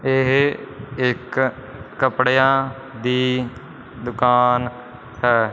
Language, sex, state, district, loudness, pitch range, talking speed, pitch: Punjabi, male, Punjab, Fazilka, -19 LUFS, 125-135 Hz, 65 wpm, 125 Hz